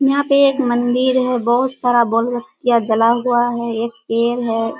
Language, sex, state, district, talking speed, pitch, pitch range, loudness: Hindi, female, Bihar, Kishanganj, 185 wpm, 240 Hz, 235-255 Hz, -16 LUFS